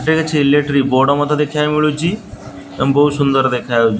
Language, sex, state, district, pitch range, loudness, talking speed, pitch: Odia, male, Odisha, Nuapada, 130-150 Hz, -15 LUFS, 180 wpm, 140 Hz